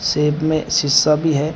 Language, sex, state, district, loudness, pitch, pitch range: Hindi, male, Uttar Pradesh, Shamli, -16 LUFS, 150 Hz, 150-155 Hz